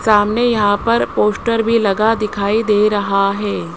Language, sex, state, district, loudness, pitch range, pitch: Hindi, male, Rajasthan, Jaipur, -15 LUFS, 205-225 Hz, 210 Hz